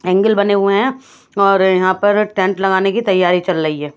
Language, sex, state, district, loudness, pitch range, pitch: Hindi, female, Odisha, Khordha, -14 LUFS, 185-205 Hz, 195 Hz